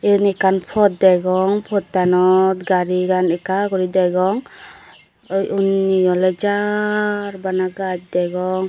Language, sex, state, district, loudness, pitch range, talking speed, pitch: Chakma, female, Tripura, Dhalai, -18 LUFS, 185-200 Hz, 105 wpm, 190 Hz